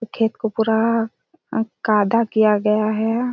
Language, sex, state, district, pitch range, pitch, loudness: Hindi, female, Chhattisgarh, Raigarh, 215-230 Hz, 225 Hz, -19 LUFS